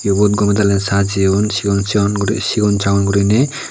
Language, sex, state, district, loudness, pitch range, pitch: Chakma, male, Tripura, Unakoti, -15 LUFS, 100-105 Hz, 100 Hz